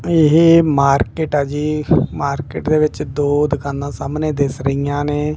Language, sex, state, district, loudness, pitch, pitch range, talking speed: Punjabi, male, Punjab, Kapurthala, -16 LUFS, 145 Hz, 140-155 Hz, 145 wpm